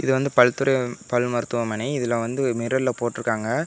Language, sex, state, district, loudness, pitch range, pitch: Tamil, male, Tamil Nadu, Namakkal, -23 LUFS, 120-130 Hz, 120 Hz